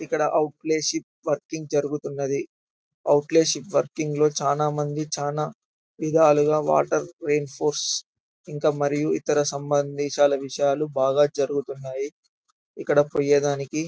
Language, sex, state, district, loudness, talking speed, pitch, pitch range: Telugu, male, Telangana, Karimnagar, -24 LUFS, 100 wpm, 145 Hz, 145-155 Hz